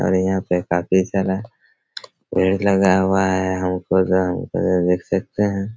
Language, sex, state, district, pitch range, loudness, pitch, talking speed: Hindi, male, Chhattisgarh, Raigarh, 90-95 Hz, -19 LUFS, 95 Hz, 165 wpm